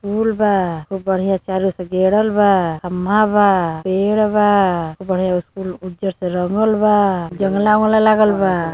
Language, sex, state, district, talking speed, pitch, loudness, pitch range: Bhojpuri, female, Uttar Pradesh, Deoria, 170 wpm, 195 Hz, -16 LUFS, 185-210 Hz